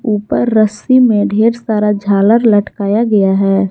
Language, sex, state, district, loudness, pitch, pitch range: Hindi, female, Jharkhand, Garhwa, -12 LUFS, 210 Hz, 200-225 Hz